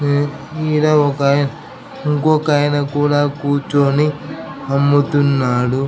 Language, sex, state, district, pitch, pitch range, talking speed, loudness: Telugu, male, Andhra Pradesh, Krishna, 145 Hz, 140-150 Hz, 70 wpm, -16 LUFS